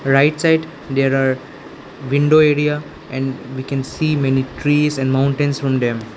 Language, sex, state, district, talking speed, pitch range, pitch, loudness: English, male, Arunachal Pradesh, Lower Dibang Valley, 155 wpm, 130-150 Hz, 135 Hz, -17 LUFS